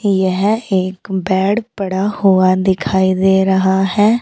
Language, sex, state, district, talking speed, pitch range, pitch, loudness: Hindi, female, Uttar Pradesh, Saharanpur, 130 wpm, 190-200 Hz, 190 Hz, -15 LUFS